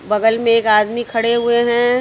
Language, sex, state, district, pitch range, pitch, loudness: Hindi, female, Uttar Pradesh, Varanasi, 225-235 Hz, 230 Hz, -15 LUFS